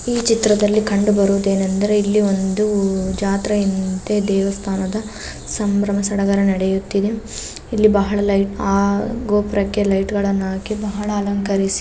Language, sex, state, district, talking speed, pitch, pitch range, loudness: Kannada, female, Karnataka, Belgaum, 110 wpm, 200 Hz, 195-210 Hz, -18 LUFS